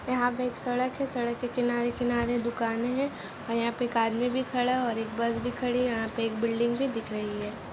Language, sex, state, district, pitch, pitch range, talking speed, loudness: Hindi, female, Bihar, Sitamarhi, 240 Hz, 230-250 Hz, 250 wpm, -29 LUFS